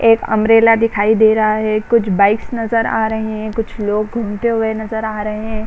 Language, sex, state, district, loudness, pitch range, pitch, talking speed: Hindi, female, Bihar, Saran, -15 LUFS, 215-225 Hz, 220 Hz, 210 wpm